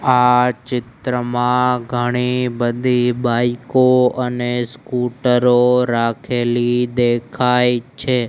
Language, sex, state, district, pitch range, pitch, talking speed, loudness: Gujarati, male, Gujarat, Gandhinagar, 120-125 Hz, 125 Hz, 70 wpm, -17 LUFS